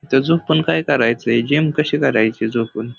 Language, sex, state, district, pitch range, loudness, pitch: Marathi, male, Maharashtra, Pune, 115-150 Hz, -17 LUFS, 135 Hz